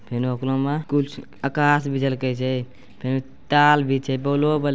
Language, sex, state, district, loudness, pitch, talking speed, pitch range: Angika, male, Bihar, Bhagalpur, -22 LUFS, 135 Hz, 175 wpm, 130-145 Hz